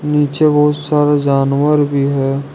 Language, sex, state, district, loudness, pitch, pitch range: Hindi, male, Jharkhand, Ranchi, -14 LUFS, 145 Hz, 140-150 Hz